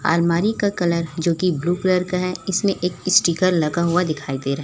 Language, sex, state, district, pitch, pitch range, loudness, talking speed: Hindi, female, Chhattisgarh, Raipur, 175 Hz, 170-185 Hz, -20 LUFS, 230 wpm